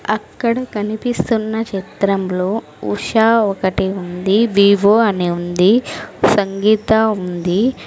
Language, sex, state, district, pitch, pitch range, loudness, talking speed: Telugu, female, Andhra Pradesh, Sri Satya Sai, 205 Hz, 190-225 Hz, -16 LUFS, 85 wpm